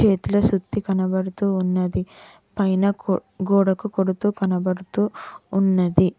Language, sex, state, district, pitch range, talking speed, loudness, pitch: Telugu, female, Telangana, Mahabubabad, 185-200 Hz, 95 wpm, -22 LUFS, 190 Hz